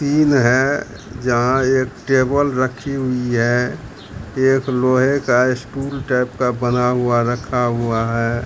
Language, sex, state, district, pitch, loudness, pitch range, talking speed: Hindi, male, Bihar, Katihar, 125 Hz, -18 LUFS, 120-135 Hz, 130 wpm